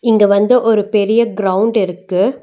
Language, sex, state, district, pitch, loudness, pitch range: Tamil, female, Tamil Nadu, Nilgiris, 210 Hz, -13 LUFS, 200-230 Hz